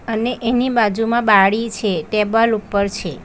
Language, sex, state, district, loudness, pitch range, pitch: Gujarati, female, Gujarat, Valsad, -17 LUFS, 200-230 Hz, 220 Hz